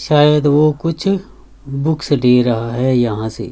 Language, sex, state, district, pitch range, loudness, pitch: Hindi, male, Haryana, Rohtak, 120-150 Hz, -15 LUFS, 145 Hz